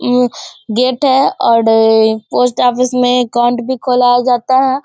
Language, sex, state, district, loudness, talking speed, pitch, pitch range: Hindi, female, Bihar, Darbhanga, -12 LUFS, 150 wpm, 245 Hz, 235-255 Hz